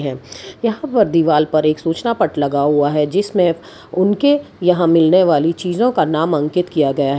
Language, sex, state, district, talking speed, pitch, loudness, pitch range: Hindi, female, Gujarat, Valsad, 185 wpm, 165 Hz, -16 LUFS, 150-185 Hz